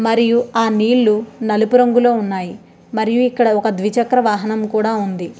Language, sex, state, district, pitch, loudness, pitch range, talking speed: Telugu, female, Andhra Pradesh, Krishna, 220 Hz, -16 LUFS, 215-240 Hz, 145 wpm